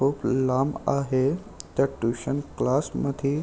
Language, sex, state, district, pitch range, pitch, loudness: Marathi, male, Maharashtra, Aurangabad, 130-140 Hz, 140 Hz, -26 LUFS